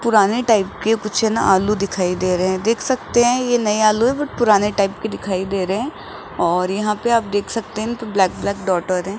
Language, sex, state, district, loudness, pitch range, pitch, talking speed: Hindi, male, Rajasthan, Jaipur, -18 LUFS, 190-230 Hz, 210 Hz, 250 wpm